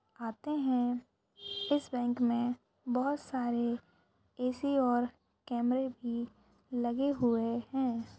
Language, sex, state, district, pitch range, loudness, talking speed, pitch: Hindi, female, Maharashtra, Sindhudurg, 240-265 Hz, -34 LUFS, 105 wpm, 245 Hz